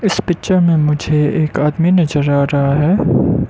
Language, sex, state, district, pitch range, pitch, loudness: Hindi, male, Arunachal Pradesh, Lower Dibang Valley, 145-175 Hz, 155 Hz, -14 LUFS